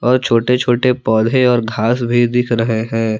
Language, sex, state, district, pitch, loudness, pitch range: Hindi, male, Jharkhand, Palamu, 120 Hz, -15 LUFS, 115-125 Hz